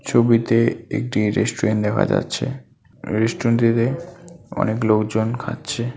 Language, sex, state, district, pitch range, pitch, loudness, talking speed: Bengali, male, West Bengal, Alipurduar, 110-130 Hz, 115 Hz, -20 LUFS, 100 wpm